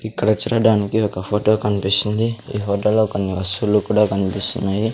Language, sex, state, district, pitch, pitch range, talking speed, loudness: Telugu, male, Andhra Pradesh, Sri Satya Sai, 105 Hz, 100-110 Hz, 135 wpm, -19 LUFS